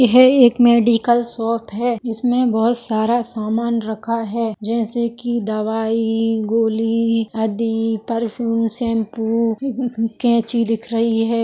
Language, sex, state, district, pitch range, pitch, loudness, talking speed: Hindi, female, Rajasthan, Nagaur, 225-235 Hz, 230 Hz, -18 LUFS, 115 wpm